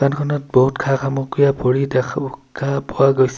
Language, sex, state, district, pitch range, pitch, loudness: Assamese, male, Assam, Sonitpur, 130-140 Hz, 135 Hz, -18 LUFS